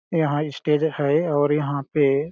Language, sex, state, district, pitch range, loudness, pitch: Hindi, male, Chhattisgarh, Balrampur, 140-155 Hz, -22 LUFS, 145 Hz